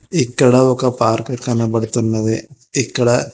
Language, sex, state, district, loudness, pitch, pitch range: Telugu, male, Telangana, Hyderabad, -16 LUFS, 120 Hz, 115-130 Hz